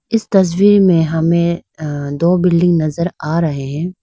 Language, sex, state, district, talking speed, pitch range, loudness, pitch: Hindi, female, Arunachal Pradesh, Lower Dibang Valley, 150 wpm, 160-180 Hz, -15 LUFS, 170 Hz